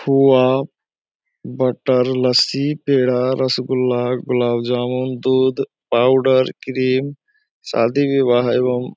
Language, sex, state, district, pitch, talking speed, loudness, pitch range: Hindi, male, Bihar, Supaul, 130 Hz, 85 wpm, -17 LUFS, 125-135 Hz